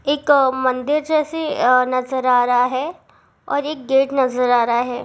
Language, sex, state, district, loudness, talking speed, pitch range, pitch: Hindi, female, Rajasthan, Churu, -18 LUFS, 165 wpm, 250-290 Hz, 265 Hz